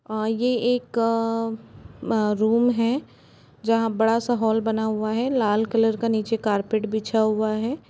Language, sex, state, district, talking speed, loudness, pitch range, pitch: Hindi, female, Uttar Pradesh, Jalaun, 150 wpm, -23 LUFS, 220-230 Hz, 225 Hz